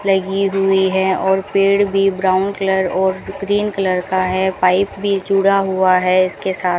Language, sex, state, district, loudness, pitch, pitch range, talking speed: Hindi, female, Rajasthan, Bikaner, -16 LUFS, 190 Hz, 185-195 Hz, 175 wpm